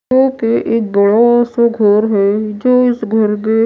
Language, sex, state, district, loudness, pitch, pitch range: Hindi, female, Odisha, Malkangiri, -13 LUFS, 225 Hz, 210-240 Hz